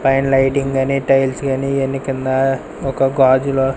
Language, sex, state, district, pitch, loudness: Telugu, male, Andhra Pradesh, Sri Satya Sai, 135 Hz, -16 LUFS